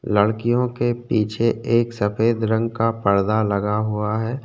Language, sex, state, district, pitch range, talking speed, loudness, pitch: Hindi, male, Uttarakhand, Tehri Garhwal, 105-115 Hz, 150 wpm, -21 LUFS, 110 Hz